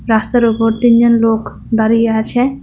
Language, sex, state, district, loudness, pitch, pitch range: Bengali, female, West Bengal, Cooch Behar, -13 LUFS, 230 Hz, 225-240 Hz